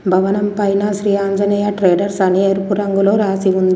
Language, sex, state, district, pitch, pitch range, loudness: Telugu, female, Telangana, Komaram Bheem, 195 Hz, 195-205 Hz, -15 LUFS